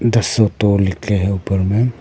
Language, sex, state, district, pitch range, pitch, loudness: Hindi, male, Arunachal Pradesh, Papum Pare, 95-115 Hz, 100 Hz, -16 LUFS